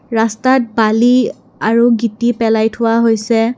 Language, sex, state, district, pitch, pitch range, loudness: Assamese, female, Assam, Kamrup Metropolitan, 230 Hz, 225-240 Hz, -13 LUFS